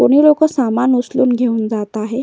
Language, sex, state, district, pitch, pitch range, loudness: Marathi, female, Maharashtra, Solapur, 245 Hz, 225-265 Hz, -15 LUFS